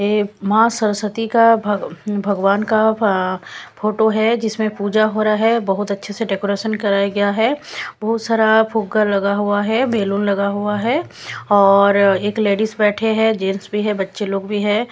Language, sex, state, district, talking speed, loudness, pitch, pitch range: Hindi, female, Punjab, Kapurthala, 170 wpm, -17 LUFS, 210 Hz, 200-220 Hz